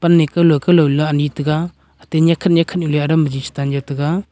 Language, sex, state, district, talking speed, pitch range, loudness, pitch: Wancho, male, Arunachal Pradesh, Longding, 235 wpm, 145-170 Hz, -16 LUFS, 155 Hz